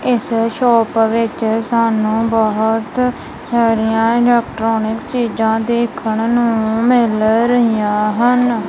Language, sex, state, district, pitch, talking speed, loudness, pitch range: Punjabi, female, Punjab, Kapurthala, 225 Hz, 90 wpm, -15 LUFS, 220-235 Hz